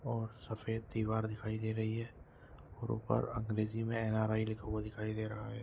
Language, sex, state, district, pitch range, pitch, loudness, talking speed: Hindi, male, Goa, North and South Goa, 110-115 Hz, 110 Hz, -38 LUFS, 190 wpm